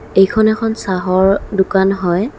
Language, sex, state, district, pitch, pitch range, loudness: Assamese, female, Assam, Kamrup Metropolitan, 195 Hz, 190-215 Hz, -14 LUFS